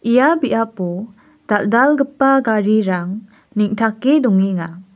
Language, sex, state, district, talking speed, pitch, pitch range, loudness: Garo, female, Meghalaya, West Garo Hills, 70 wpm, 220 Hz, 200-265 Hz, -16 LUFS